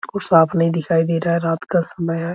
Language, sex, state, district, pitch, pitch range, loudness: Hindi, male, Bihar, Araria, 165 Hz, 165-170 Hz, -18 LUFS